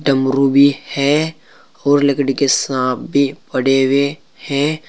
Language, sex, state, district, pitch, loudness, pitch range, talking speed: Hindi, male, Uttar Pradesh, Saharanpur, 140 Hz, -16 LUFS, 135-145 Hz, 135 wpm